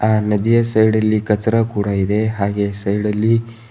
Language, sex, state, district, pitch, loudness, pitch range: Kannada, male, Karnataka, Bidar, 110 Hz, -17 LUFS, 105-110 Hz